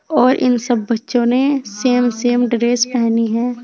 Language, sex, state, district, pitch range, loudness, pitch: Hindi, female, Uttar Pradesh, Saharanpur, 235-250 Hz, -16 LUFS, 245 Hz